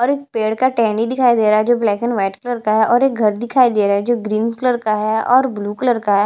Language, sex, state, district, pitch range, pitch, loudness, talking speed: Hindi, female, Chhattisgarh, Jashpur, 215-245 Hz, 230 Hz, -16 LUFS, 305 wpm